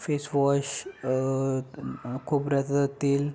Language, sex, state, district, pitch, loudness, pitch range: Marathi, male, Maharashtra, Pune, 140 Hz, -28 LUFS, 135-145 Hz